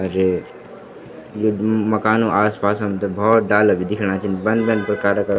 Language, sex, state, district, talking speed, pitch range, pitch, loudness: Garhwali, male, Uttarakhand, Tehri Garhwal, 180 wpm, 100-110 Hz, 105 Hz, -18 LUFS